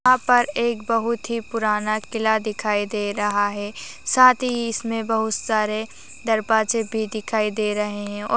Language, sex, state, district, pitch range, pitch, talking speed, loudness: Hindi, female, Maharashtra, Nagpur, 210-230 Hz, 220 Hz, 165 wpm, -22 LUFS